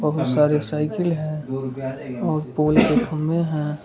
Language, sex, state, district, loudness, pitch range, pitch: Hindi, male, Gujarat, Valsad, -22 LUFS, 150-155 Hz, 150 Hz